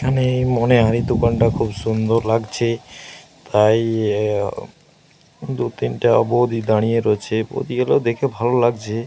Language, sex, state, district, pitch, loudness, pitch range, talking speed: Bengali, male, Jharkhand, Jamtara, 115 Hz, -18 LUFS, 110-120 Hz, 105 wpm